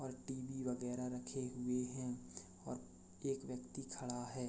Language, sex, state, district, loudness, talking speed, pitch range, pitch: Hindi, male, Uttar Pradesh, Jalaun, -45 LUFS, 145 wpm, 125-130 Hz, 125 Hz